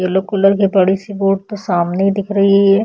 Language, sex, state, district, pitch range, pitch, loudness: Hindi, female, Uttar Pradesh, Budaun, 190-200 Hz, 195 Hz, -15 LUFS